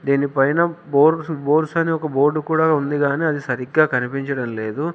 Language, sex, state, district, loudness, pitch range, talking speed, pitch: Telugu, male, Telangana, Komaram Bheem, -19 LUFS, 140-160 Hz, 170 wpm, 145 Hz